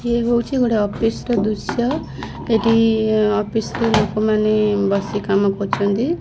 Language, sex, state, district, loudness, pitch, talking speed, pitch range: Odia, female, Odisha, Khordha, -18 LUFS, 215 Hz, 115 wpm, 205-230 Hz